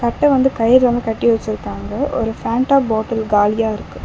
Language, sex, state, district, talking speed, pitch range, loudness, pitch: Tamil, female, Tamil Nadu, Chennai, 150 wpm, 220-250 Hz, -16 LUFS, 230 Hz